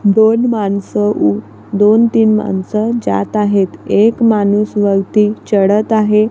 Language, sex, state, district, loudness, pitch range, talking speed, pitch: Marathi, female, Maharashtra, Gondia, -13 LUFS, 200-220 Hz, 115 wpm, 210 Hz